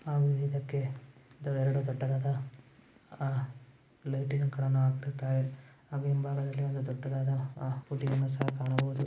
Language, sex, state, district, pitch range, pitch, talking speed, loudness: Kannada, male, Karnataka, Gulbarga, 130-140 Hz, 135 Hz, 95 wpm, -33 LUFS